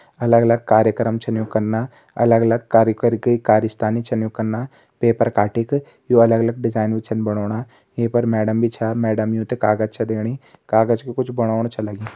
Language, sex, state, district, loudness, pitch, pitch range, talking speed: Hindi, male, Uttarakhand, Tehri Garhwal, -19 LUFS, 115 Hz, 110-120 Hz, 175 wpm